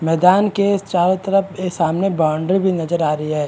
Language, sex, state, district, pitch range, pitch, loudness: Hindi, male, Maharashtra, Chandrapur, 160-195 Hz, 180 Hz, -17 LUFS